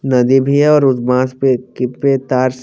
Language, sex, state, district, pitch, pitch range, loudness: Hindi, male, Haryana, Jhajjar, 130 Hz, 125-135 Hz, -14 LUFS